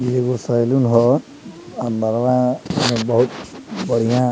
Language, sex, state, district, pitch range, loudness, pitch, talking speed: Bhojpuri, male, Bihar, Muzaffarpur, 120-125 Hz, -18 LUFS, 125 Hz, 125 wpm